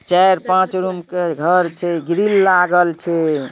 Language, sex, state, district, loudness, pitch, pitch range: Maithili, male, Bihar, Darbhanga, -16 LUFS, 180 Hz, 170-185 Hz